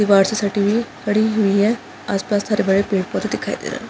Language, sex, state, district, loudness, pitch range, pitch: Hindi, female, Chhattisgarh, Bastar, -19 LUFS, 200-215 Hz, 205 Hz